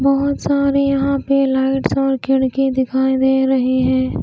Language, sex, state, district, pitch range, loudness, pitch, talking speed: Hindi, female, Haryana, Rohtak, 265-275 Hz, -16 LUFS, 270 Hz, 155 wpm